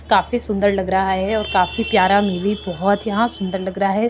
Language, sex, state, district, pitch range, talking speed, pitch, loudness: Hindi, female, Maharashtra, Chandrapur, 190-210 Hz, 220 wpm, 200 Hz, -19 LUFS